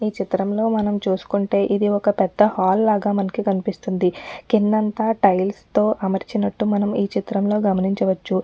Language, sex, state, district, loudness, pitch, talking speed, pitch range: Telugu, female, Telangana, Nalgonda, -20 LUFS, 205 Hz, 140 wpm, 190-215 Hz